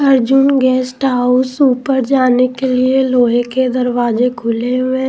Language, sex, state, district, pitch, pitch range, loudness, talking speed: Hindi, female, Punjab, Pathankot, 255 Hz, 245-265 Hz, -13 LUFS, 155 wpm